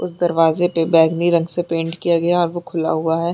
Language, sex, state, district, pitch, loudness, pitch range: Hindi, female, Chhattisgarh, Bilaspur, 170 Hz, -18 LUFS, 165-175 Hz